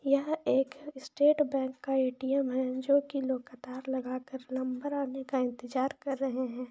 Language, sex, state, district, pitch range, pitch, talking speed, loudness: Hindi, female, Jharkhand, Jamtara, 255-275 Hz, 265 Hz, 180 wpm, -31 LUFS